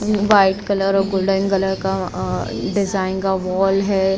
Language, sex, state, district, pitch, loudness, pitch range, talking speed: Hindi, female, Maharashtra, Mumbai Suburban, 195 Hz, -18 LUFS, 190-195 Hz, 145 wpm